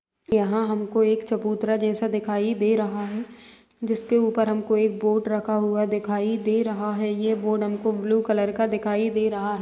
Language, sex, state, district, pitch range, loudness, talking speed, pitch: Hindi, female, Maharashtra, Solapur, 210-220 Hz, -24 LUFS, 180 wpm, 215 Hz